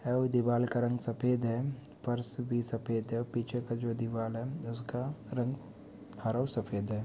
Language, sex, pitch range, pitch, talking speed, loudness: Hindi, male, 115-125 Hz, 120 Hz, 125 wpm, -34 LUFS